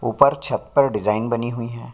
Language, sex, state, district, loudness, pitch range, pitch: Hindi, male, Bihar, Bhagalpur, -21 LUFS, 115-140 Hz, 120 Hz